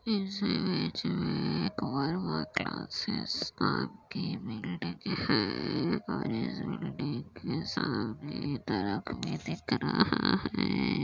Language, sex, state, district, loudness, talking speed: Hindi, female, Bihar, Kishanganj, -32 LUFS, 100 wpm